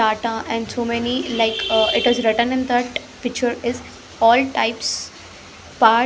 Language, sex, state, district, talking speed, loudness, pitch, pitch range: English, female, Punjab, Pathankot, 160 wpm, -19 LUFS, 235 Hz, 225-245 Hz